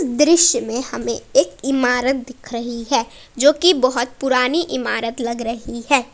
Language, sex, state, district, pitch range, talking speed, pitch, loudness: Hindi, female, Jharkhand, Palamu, 240-275 Hz, 155 wpm, 250 Hz, -18 LUFS